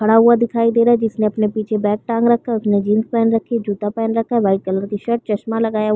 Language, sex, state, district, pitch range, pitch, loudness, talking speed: Hindi, female, Chhattisgarh, Bilaspur, 210-230 Hz, 225 Hz, -17 LUFS, 280 wpm